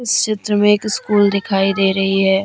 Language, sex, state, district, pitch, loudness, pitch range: Hindi, female, Jharkhand, Deoghar, 200 Hz, -16 LUFS, 195-210 Hz